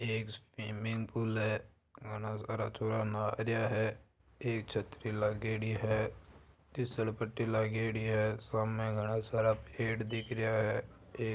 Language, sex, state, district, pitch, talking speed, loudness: Marwari, male, Rajasthan, Churu, 110 Hz, 135 wpm, -36 LUFS